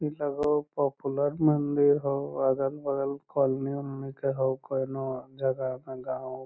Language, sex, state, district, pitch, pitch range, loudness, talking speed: Magahi, male, Bihar, Lakhisarai, 135 Hz, 130-145 Hz, -29 LUFS, 160 wpm